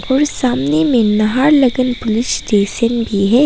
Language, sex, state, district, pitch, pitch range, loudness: Hindi, female, Arunachal Pradesh, Papum Pare, 245 Hz, 220-270 Hz, -14 LUFS